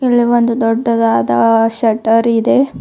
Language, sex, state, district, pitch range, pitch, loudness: Kannada, female, Karnataka, Bidar, 225-240 Hz, 230 Hz, -13 LUFS